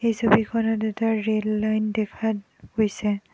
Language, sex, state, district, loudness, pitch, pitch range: Assamese, female, Assam, Kamrup Metropolitan, -24 LUFS, 215 Hz, 215-220 Hz